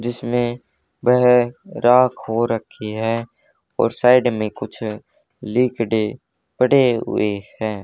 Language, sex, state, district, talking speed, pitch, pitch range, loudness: Hindi, male, Haryana, Rohtak, 115 wpm, 120 Hz, 110-125 Hz, -19 LUFS